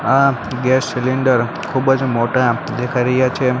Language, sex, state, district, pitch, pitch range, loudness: Gujarati, male, Gujarat, Gandhinagar, 130 Hz, 125-130 Hz, -17 LUFS